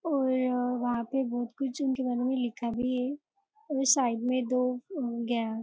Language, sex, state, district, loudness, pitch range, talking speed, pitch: Hindi, female, Maharashtra, Nagpur, -30 LUFS, 245-270 Hz, 170 wpm, 250 Hz